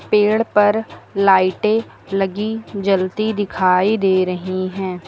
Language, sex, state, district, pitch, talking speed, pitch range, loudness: Hindi, female, Uttar Pradesh, Lucknow, 195 Hz, 105 wpm, 185-215 Hz, -18 LUFS